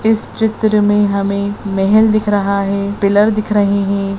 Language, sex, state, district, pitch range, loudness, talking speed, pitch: Hindi, female, Bihar, Jahanabad, 200-215 Hz, -14 LUFS, 170 wpm, 205 Hz